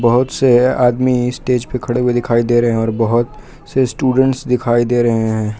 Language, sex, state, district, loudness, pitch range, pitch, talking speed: Hindi, male, Jharkhand, Palamu, -15 LUFS, 120-125 Hz, 120 Hz, 205 wpm